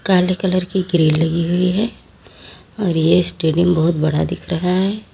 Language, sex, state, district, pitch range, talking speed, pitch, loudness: Hindi, female, Uttar Pradesh, Lalitpur, 165-185 Hz, 175 wpm, 180 Hz, -17 LUFS